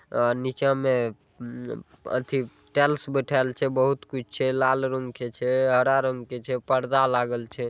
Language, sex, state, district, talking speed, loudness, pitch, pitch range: Maithili, male, Bihar, Saharsa, 170 wpm, -25 LUFS, 130 Hz, 125-135 Hz